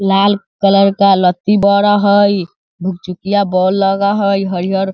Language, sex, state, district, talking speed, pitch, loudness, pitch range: Hindi, male, Bihar, Sitamarhi, 135 wpm, 195 Hz, -13 LUFS, 190-200 Hz